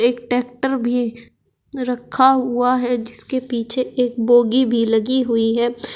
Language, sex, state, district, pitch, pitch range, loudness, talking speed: Hindi, female, Uttar Pradesh, Shamli, 245 Hz, 235-255 Hz, -18 LUFS, 130 wpm